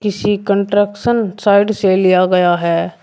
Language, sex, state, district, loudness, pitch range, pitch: Hindi, male, Uttar Pradesh, Shamli, -14 LUFS, 185-205 Hz, 200 Hz